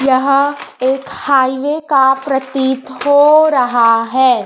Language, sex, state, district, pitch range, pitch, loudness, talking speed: Hindi, male, Madhya Pradesh, Dhar, 260-285 Hz, 270 Hz, -13 LUFS, 110 wpm